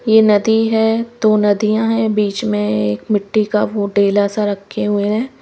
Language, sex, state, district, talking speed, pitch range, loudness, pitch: Hindi, female, Himachal Pradesh, Shimla, 190 wpm, 205-220 Hz, -16 LUFS, 210 Hz